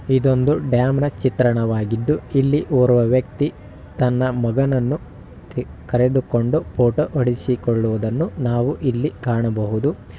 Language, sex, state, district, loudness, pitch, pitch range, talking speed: Kannada, male, Karnataka, Shimoga, -19 LUFS, 125 Hz, 115-135 Hz, 80 wpm